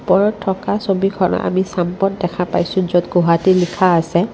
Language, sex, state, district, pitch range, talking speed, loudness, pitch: Assamese, female, Assam, Kamrup Metropolitan, 175-195 Hz, 140 wpm, -16 LUFS, 185 Hz